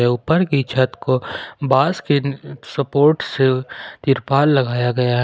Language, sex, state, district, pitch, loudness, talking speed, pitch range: Hindi, male, Jharkhand, Ranchi, 135 Hz, -18 LUFS, 135 wpm, 125-145 Hz